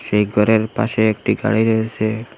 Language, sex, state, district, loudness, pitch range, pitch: Bengali, male, Assam, Hailakandi, -17 LUFS, 110-115 Hz, 110 Hz